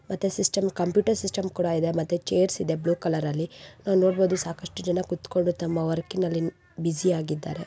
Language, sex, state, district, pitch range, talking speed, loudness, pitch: Kannada, female, Karnataka, Raichur, 165-190 Hz, 170 wpm, -26 LUFS, 175 Hz